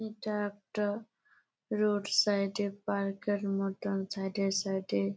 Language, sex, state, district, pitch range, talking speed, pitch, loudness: Bengali, female, West Bengal, Malda, 195-210 Hz, 105 wpm, 200 Hz, -33 LUFS